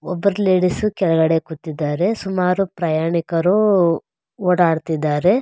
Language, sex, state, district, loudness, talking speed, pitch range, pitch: Kannada, female, Karnataka, Bangalore, -18 LUFS, 90 wpm, 160-190 Hz, 180 Hz